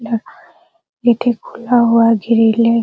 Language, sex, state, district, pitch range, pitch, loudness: Hindi, female, Bihar, Araria, 230-245 Hz, 230 Hz, -14 LUFS